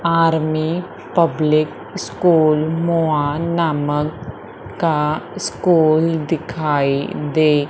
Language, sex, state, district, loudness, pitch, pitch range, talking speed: Hindi, female, Madhya Pradesh, Umaria, -18 LUFS, 155 Hz, 150-165 Hz, 80 wpm